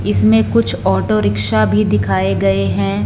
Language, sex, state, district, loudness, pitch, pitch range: Hindi, female, Punjab, Fazilka, -15 LUFS, 105 Hz, 95-105 Hz